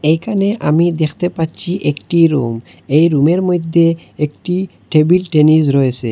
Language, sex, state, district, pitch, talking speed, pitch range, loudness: Bengali, male, Assam, Hailakandi, 160 Hz, 125 wpm, 150-175 Hz, -14 LUFS